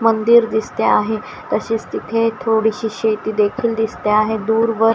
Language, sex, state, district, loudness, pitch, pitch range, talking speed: Marathi, female, Maharashtra, Washim, -17 LUFS, 220 Hz, 220-225 Hz, 145 wpm